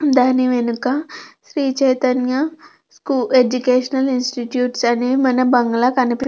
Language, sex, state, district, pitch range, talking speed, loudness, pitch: Telugu, female, Andhra Pradesh, Krishna, 250-270 Hz, 95 wpm, -17 LUFS, 255 Hz